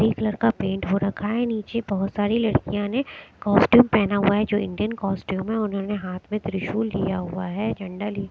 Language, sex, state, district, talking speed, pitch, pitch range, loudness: Hindi, female, Maharashtra, Mumbai Suburban, 225 wpm, 205 Hz, 195-220 Hz, -23 LUFS